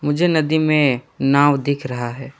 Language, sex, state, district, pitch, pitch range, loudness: Hindi, male, West Bengal, Alipurduar, 140 Hz, 135-155 Hz, -18 LUFS